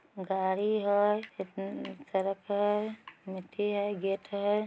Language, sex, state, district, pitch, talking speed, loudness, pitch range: Magahi, female, Bihar, Samastipur, 200 Hz, 130 wpm, -32 LUFS, 190-205 Hz